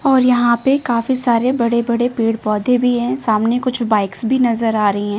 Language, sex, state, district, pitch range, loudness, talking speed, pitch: Hindi, male, Delhi, New Delhi, 225-250 Hz, -16 LUFS, 220 wpm, 235 Hz